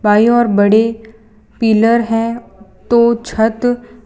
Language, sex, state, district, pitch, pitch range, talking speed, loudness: Hindi, female, Gujarat, Valsad, 230 Hz, 220-235 Hz, 120 wpm, -13 LUFS